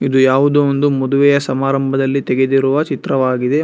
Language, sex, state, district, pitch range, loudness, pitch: Kannada, male, Karnataka, Bangalore, 130-140 Hz, -14 LUFS, 135 Hz